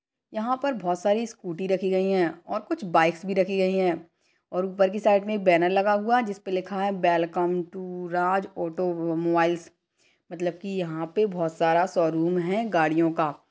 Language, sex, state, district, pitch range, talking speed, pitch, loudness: Hindi, female, Chhattisgarh, Sarguja, 170-195 Hz, 185 wpm, 180 Hz, -25 LUFS